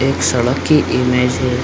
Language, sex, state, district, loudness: Hindi, male, Bihar, Supaul, -15 LUFS